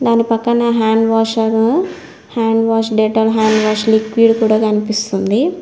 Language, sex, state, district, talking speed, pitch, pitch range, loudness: Telugu, female, Telangana, Mahabubabad, 130 wpm, 225 Hz, 220-230 Hz, -14 LUFS